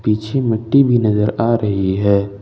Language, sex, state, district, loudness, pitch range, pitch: Hindi, male, Jharkhand, Ranchi, -16 LUFS, 100-115 Hz, 105 Hz